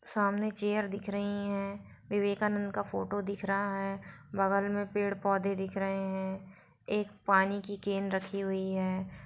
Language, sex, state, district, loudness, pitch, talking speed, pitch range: Hindi, female, Bihar, Saran, -33 LUFS, 200 Hz, 155 wpm, 195-205 Hz